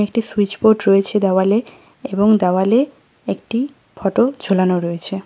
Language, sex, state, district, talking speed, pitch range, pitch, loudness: Bengali, female, West Bengal, Cooch Behar, 115 wpm, 195-230 Hz, 205 Hz, -17 LUFS